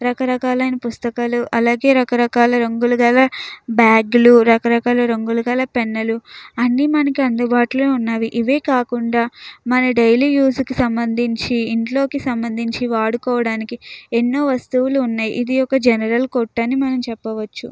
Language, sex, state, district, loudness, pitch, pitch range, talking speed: Telugu, female, Andhra Pradesh, Krishna, -17 LUFS, 240 Hz, 230-255 Hz, 125 wpm